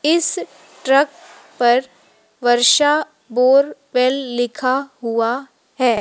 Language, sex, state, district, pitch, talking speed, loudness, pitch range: Hindi, female, Madhya Pradesh, Umaria, 260 Hz, 80 wpm, -17 LUFS, 245-285 Hz